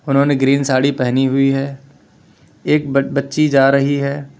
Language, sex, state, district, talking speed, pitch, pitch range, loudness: Hindi, male, Uttar Pradesh, Lalitpur, 150 wpm, 140 Hz, 135-140 Hz, -15 LUFS